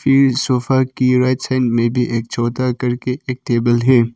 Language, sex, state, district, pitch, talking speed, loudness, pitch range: Hindi, male, Arunachal Pradesh, Papum Pare, 125 Hz, 185 wpm, -17 LUFS, 120-130 Hz